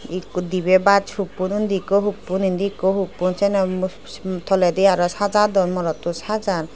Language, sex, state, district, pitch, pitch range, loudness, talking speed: Chakma, female, Tripura, Dhalai, 190 Hz, 180-200 Hz, -20 LUFS, 150 wpm